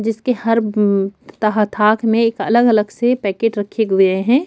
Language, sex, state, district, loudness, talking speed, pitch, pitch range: Hindi, female, Chhattisgarh, Kabirdham, -16 LUFS, 145 wpm, 220 Hz, 205-230 Hz